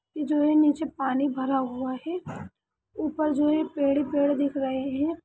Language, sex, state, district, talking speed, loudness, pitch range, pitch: Hindi, female, Bihar, Sitamarhi, 195 wpm, -26 LUFS, 270-305 Hz, 290 Hz